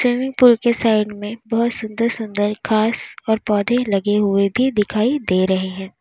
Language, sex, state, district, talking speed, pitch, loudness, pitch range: Hindi, female, Uttar Pradesh, Lalitpur, 180 wpm, 220 Hz, -18 LUFS, 205-235 Hz